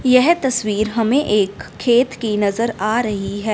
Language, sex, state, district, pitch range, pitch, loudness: Hindi, female, Punjab, Fazilka, 210-255 Hz, 225 Hz, -18 LUFS